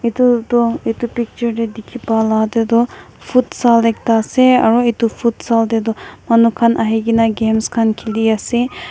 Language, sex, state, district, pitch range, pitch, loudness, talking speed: Nagamese, female, Nagaland, Kohima, 225-240 Hz, 230 Hz, -15 LUFS, 160 wpm